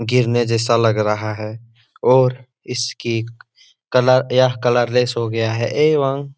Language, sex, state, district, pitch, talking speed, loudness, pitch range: Hindi, male, Bihar, Jahanabad, 120 Hz, 150 wpm, -18 LUFS, 115-125 Hz